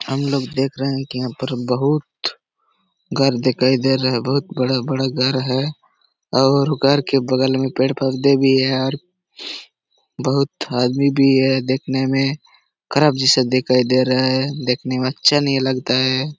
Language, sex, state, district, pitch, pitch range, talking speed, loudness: Hindi, male, Jharkhand, Sahebganj, 130 Hz, 130-135 Hz, 170 wpm, -18 LUFS